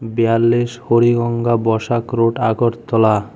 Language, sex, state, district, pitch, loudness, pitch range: Bengali, male, Tripura, West Tripura, 115 Hz, -16 LUFS, 115-120 Hz